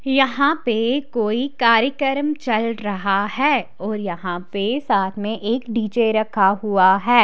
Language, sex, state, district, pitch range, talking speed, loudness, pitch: Hindi, female, Haryana, Charkhi Dadri, 205-260 Hz, 140 wpm, -19 LUFS, 225 Hz